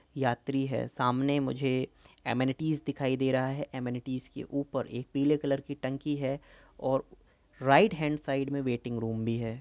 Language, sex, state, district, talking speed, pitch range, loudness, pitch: Hindi, male, Uttar Pradesh, Jyotiba Phule Nagar, 170 wpm, 130-140 Hz, -31 LUFS, 135 Hz